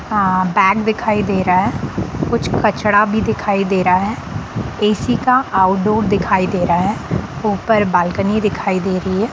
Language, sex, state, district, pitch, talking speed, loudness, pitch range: Hindi, female, Bihar, Sitamarhi, 200 Hz, 160 wpm, -16 LUFS, 185-210 Hz